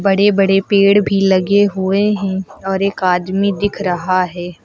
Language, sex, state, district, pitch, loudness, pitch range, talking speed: Hindi, female, Uttar Pradesh, Lucknow, 195 Hz, -15 LUFS, 190-200 Hz, 170 wpm